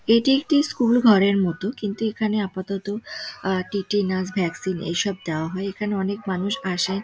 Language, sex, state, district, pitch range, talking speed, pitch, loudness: Bengali, female, West Bengal, Dakshin Dinajpur, 185-210 Hz, 160 wpm, 200 Hz, -23 LUFS